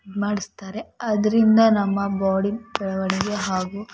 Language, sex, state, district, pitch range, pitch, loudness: Kannada, female, Karnataka, Mysore, 195-215 Hz, 205 Hz, -21 LUFS